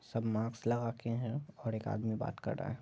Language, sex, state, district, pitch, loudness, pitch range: Hindi, male, Bihar, Madhepura, 115 Hz, -38 LUFS, 110-120 Hz